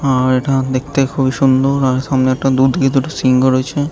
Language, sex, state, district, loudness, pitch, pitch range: Bengali, male, West Bengal, Kolkata, -14 LUFS, 135 Hz, 130-135 Hz